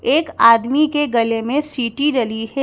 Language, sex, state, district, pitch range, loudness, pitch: Hindi, male, Madhya Pradesh, Bhopal, 230-295 Hz, -16 LUFS, 260 Hz